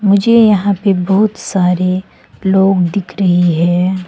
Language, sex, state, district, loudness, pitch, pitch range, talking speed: Hindi, female, Arunachal Pradesh, Longding, -12 LUFS, 190 Hz, 180-200 Hz, 135 wpm